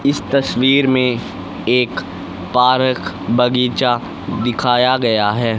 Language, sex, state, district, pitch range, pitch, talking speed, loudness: Hindi, male, Haryana, Rohtak, 115-130 Hz, 125 Hz, 95 wpm, -16 LUFS